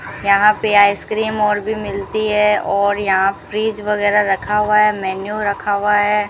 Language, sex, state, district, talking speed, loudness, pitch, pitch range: Hindi, female, Rajasthan, Bikaner, 170 wpm, -16 LUFS, 210 Hz, 200-210 Hz